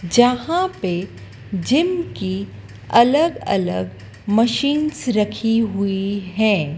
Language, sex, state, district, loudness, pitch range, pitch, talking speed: Hindi, female, Madhya Pradesh, Dhar, -19 LUFS, 155-245 Hz, 200 Hz, 90 wpm